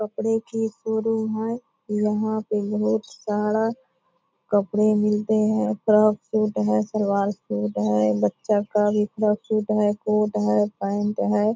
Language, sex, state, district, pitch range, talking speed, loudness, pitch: Hindi, female, Bihar, Purnia, 200-215 Hz, 140 wpm, -23 LUFS, 210 Hz